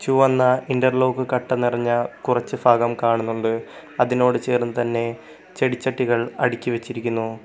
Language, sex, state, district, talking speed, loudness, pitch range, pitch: Malayalam, male, Kerala, Kollam, 115 wpm, -21 LUFS, 115-130 Hz, 120 Hz